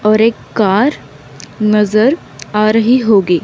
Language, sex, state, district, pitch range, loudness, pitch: Hindi, female, Chandigarh, Chandigarh, 210-230 Hz, -12 LUFS, 215 Hz